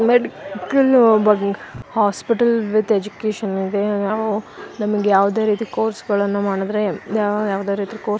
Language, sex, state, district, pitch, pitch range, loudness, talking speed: Kannada, female, Karnataka, Shimoga, 210 Hz, 200-220 Hz, -19 LUFS, 125 wpm